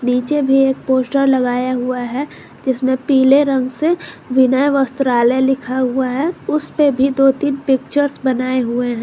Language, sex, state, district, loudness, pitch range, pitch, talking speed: Hindi, female, Jharkhand, Garhwa, -16 LUFS, 255-275 Hz, 265 Hz, 155 wpm